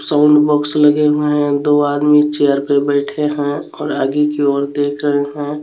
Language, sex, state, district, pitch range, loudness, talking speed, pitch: Hindi, male, Jharkhand, Garhwa, 145-150 Hz, -15 LUFS, 190 wpm, 145 Hz